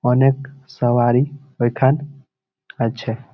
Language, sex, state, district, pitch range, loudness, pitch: Bengali, male, West Bengal, Malda, 120-135 Hz, -19 LUFS, 130 Hz